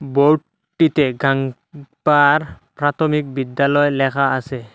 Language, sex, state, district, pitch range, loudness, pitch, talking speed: Bengali, male, Assam, Hailakandi, 135-150 Hz, -17 LUFS, 145 Hz, 115 wpm